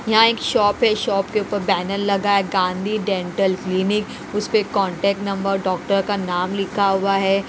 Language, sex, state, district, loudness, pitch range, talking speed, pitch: Hindi, female, Haryana, Rohtak, -20 LUFS, 195-205 Hz, 185 wpm, 200 Hz